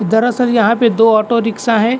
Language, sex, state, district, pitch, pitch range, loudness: Hindi, male, Bihar, Lakhisarai, 230 Hz, 225-235 Hz, -13 LUFS